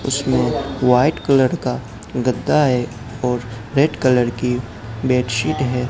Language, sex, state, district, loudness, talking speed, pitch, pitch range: Hindi, male, Gujarat, Gandhinagar, -19 LUFS, 120 wpm, 125 Hz, 120-130 Hz